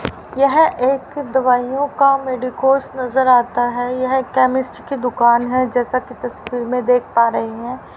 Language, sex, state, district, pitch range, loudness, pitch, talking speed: Hindi, female, Haryana, Rohtak, 245-265 Hz, -17 LUFS, 255 Hz, 160 wpm